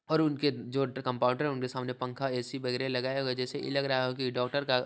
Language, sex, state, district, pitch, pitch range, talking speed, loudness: Hindi, male, Bihar, Sitamarhi, 130 Hz, 125-135 Hz, 260 wpm, -31 LUFS